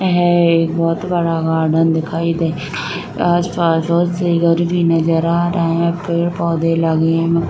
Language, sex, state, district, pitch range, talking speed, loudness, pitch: Hindi, female, Uttar Pradesh, Muzaffarnagar, 165-175 Hz, 170 wpm, -16 LUFS, 170 Hz